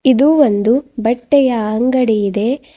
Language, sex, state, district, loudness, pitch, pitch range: Kannada, female, Karnataka, Bidar, -14 LUFS, 250 Hz, 225-270 Hz